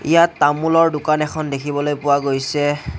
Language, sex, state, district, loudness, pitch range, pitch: Assamese, male, Assam, Kamrup Metropolitan, -18 LUFS, 145-155 Hz, 145 Hz